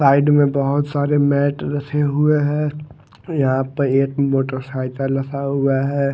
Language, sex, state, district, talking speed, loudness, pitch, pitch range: Hindi, male, Haryana, Jhajjar, 145 wpm, -19 LUFS, 140 Hz, 135-145 Hz